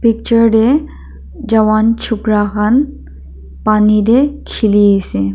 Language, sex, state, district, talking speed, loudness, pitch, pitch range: Nagamese, female, Nagaland, Dimapur, 100 wpm, -12 LUFS, 215 Hz, 195-230 Hz